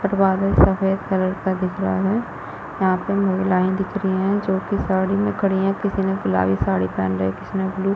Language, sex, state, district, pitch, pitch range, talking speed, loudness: Hindi, female, Chhattisgarh, Rajnandgaon, 190 Hz, 185-195 Hz, 210 wpm, -21 LUFS